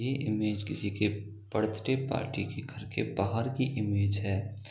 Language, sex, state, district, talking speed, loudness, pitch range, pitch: Hindi, male, Bihar, East Champaran, 165 wpm, -32 LUFS, 105-130 Hz, 110 Hz